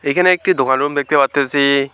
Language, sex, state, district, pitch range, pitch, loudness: Bengali, male, West Bengal, Alipurduar, 140-145 Hz, 140 Hz, -15 LUFS